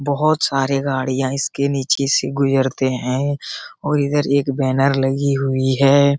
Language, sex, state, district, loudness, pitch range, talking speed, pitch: Hindi, male, Bihar, Araria, -18 LUFS, 135-140 Hz, 145 wpm, 135 Hz